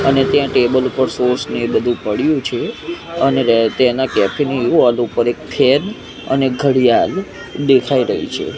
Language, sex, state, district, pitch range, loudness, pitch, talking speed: Gujarati, male, Gujarat, Gandhinagar, 120-135 Hz, -15 LUFS, 130 Hz, 170 wpm